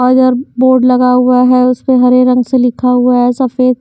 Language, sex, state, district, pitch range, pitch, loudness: Hindi, female, Haryana, Jhajjar, 250-255 Hz, 250 Hz, -10 LUFS